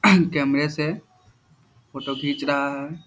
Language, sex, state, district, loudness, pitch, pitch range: Hindi, male, Bihar, Jahanabad, -23 LUFS, 145 Hz, 135-155 Hz